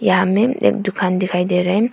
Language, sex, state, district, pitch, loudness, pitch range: Hindi, female, Arunachal Pradesh, Papum Pare, 185 Hz, -17 LUFS, 180-205 Hz